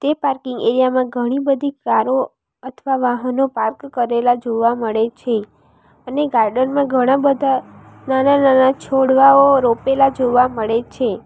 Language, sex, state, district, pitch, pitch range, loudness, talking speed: Gujarati, female, Gujarat, Valsad, 260 Hz, 245-275 Hz, -16 LUFS, 140 wpm